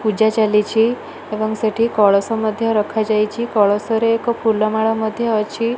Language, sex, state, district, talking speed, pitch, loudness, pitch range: Odia, female, Odisha, Malkangiri, 155 wpm, 220 Hz, -17 LUFS, 215-230 Hz